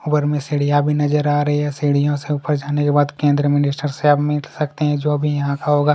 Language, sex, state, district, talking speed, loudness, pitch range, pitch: Hindi, male, Chhattisgarh, Kabirdham, 270 wpm, -18 LUFS, 145-150 Hz, 145 Hz